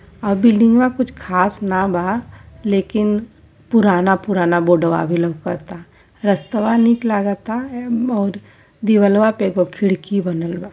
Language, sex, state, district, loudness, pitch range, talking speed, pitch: Awadhi, female, Uttar Pradesh, Varanasi, -17 LUFS, 180-225 Hz, 125 wpm, 200 Hz